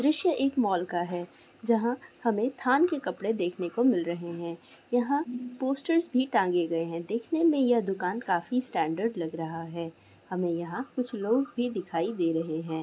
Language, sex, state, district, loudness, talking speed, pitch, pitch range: Hindi, female, Bihar, Darbhanga, -29 LUFS, 180 wpm, 225 Hz, 170-255 Hz